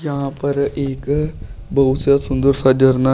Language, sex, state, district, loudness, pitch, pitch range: Hindi, male, Uttar Pradesh, Shamli, -17 LUFS, 140 Hz, 135-140 Hz